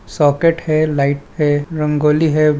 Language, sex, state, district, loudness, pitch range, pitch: Hindi, male, Chhattisgarh, Balrampur, -16 LUFS, 145-155 Hz, 150 Hz